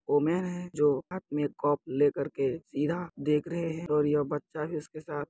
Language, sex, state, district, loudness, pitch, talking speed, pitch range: Hindi, male, Bihar, Jahanabad, -30 LUFS, 150 Hz, 215 wpm, 145-165 Hz